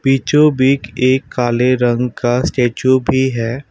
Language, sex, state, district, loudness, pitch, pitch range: Hindi, male, Assam, Kamrup Metropolitan, -15 LUFS, 130 Hz, 120-135 Hz